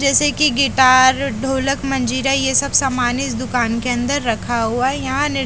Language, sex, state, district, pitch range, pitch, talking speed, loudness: Hindi, female, Haryana, Charkhi Dadri, 250-275 Hz, 265 Hz, 175 wpm, -16 LUFS